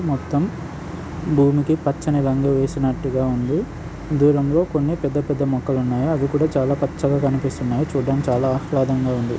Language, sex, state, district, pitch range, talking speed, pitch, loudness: Telugu, male, Andhra Pradesh, Srikakulam, 135-150 Hz, 130 wpm, 140 Hz, -20 LUFS